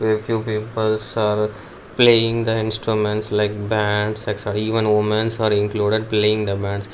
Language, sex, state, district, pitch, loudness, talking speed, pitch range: English, male, Karnataka, Bangalore, 105 Hz, -19 LUFS, 145 wpm, 105-110 Hz